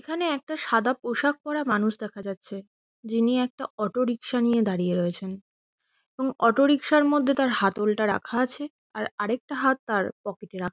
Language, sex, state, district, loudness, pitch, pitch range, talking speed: Bengali, female, West Bengal, Kolkata, -25 LUFS, 235 Hz, 205-270 Hz, 170 wpm